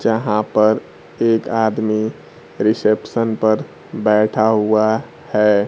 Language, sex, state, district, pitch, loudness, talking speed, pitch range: Hindi, male, Bihar, Kaimur, 110 Hz, -17 LUFS, 95 wpm, 105-110 Hz